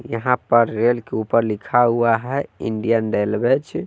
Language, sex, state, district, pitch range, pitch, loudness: Hindi, male, Bihar, West Champaran, 110-120 Hz, 115 Hz, -19 LUFS